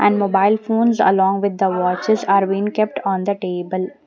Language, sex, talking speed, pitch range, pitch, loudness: English, female, 190 wpm, 190-215 Hz, 200 Hz, -18 LUFS